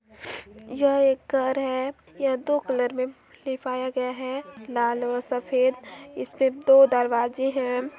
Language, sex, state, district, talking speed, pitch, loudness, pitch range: Hindi, female, Chhattisgarh, Balrampur, 145 wpm, 255 Hz, -24 LUFS, 245-270 Hz